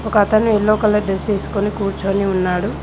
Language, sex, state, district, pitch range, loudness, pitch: Telugu, female, Telangana, Mahabubabad, 195-215 Hz, -17 LUFS, 205 Hz